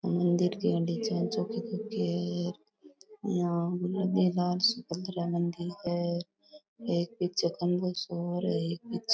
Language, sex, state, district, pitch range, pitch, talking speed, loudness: Rajasthani, female, Rajasthan, Nagaur, 170-200 Hz, 180 Hz, 130 wpm, -31 LUFS